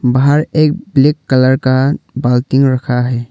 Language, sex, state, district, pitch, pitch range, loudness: Hindi, male, Arunachal Pradesh, Longding, 130 Hz, 125-145 Hz, -13 LUFS